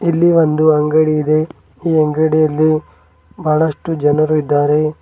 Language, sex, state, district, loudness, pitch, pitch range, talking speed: Kannada, male, Karnataka, Bidar, -14 LUFS, 155 Hz, 150-155 Hz, 110 wpm